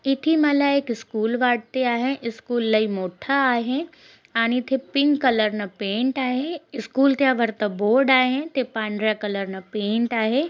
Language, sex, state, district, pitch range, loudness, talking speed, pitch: Marathi, female, Maharashtra, Chandrapur, 220-270 Hz, -22 LUFS, 160 wpm, 245 Hz